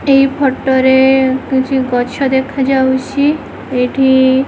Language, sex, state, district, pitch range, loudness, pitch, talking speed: Odia, female, Odisha, Khordha, 260-270 Hz, -13 LUFS, 265 Hz, 105 wpm